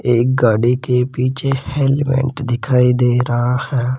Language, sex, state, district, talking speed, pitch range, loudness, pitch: Hindi, male, Rajasthan, Jaipur, 135 wpm, 125-135 Hz, -16 LUFS, 125 Hz